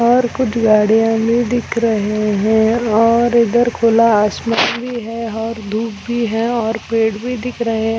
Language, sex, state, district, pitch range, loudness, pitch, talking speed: Hindi, female, Chhattisgarh, Rajnandgaon, 220-235 Hz, -15 LUFS, 230 Hz, 165 wpm